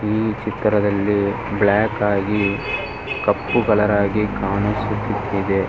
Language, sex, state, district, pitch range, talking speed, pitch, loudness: Kannada, male, Karnataka, Dharwad, 100-105 Hz, 85 wpm, 105 Hz, -20 LUFS